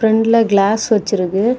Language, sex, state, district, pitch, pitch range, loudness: Tamil, female, Tamil Nadu, Kanyakumari, 220 Hz, 200-225 Hz, -14 LUFS